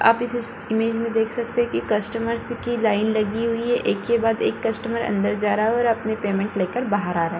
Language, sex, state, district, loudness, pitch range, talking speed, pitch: Hindi, female, Bihar, Kishanganj, -22 LUFS, 210-235 Hz, 250 wpm, 225 Hz